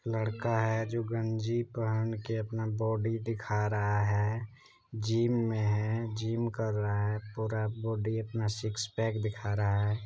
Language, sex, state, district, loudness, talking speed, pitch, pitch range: Hindi, male, Bihar, Supaul, -32 LUFS, 160 wpm, 110 Hz, 105-115 Hz